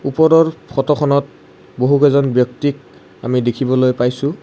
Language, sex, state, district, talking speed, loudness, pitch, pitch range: Assamese, male, Assam, Kamrup Metropolitan, 110 wpm, -15 LUFS, 135 Hz, 125-145 Hz